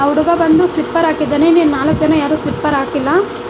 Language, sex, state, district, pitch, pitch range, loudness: Kannada, female, Karnataka, Bangalore, 310 Hz, 295-335 Hz, -13 LUFS